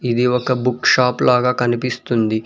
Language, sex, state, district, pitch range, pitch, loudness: Telugu, male, Telangana, Mahabubabad, 120-125 Hz, 125 Hz, -17 LUFS